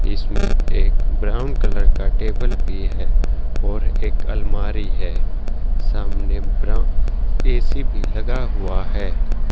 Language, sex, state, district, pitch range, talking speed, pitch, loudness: Hindi, male, Haryana, Jhajjar, 90-105 Hz, 120 wpm, 100 Hz, -24 LUFS